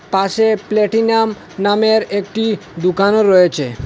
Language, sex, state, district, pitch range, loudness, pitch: Bengali, male, Assam, Hailakandi, 185-220 Hz, -15 LUFS, 205 Hz